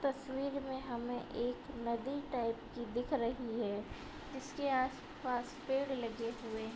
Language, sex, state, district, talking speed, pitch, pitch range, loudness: Hindi, female, Uttar Pradesh, Budaun, 150 wpm, 250 Hz, 235-270 Hz, -39 LUFS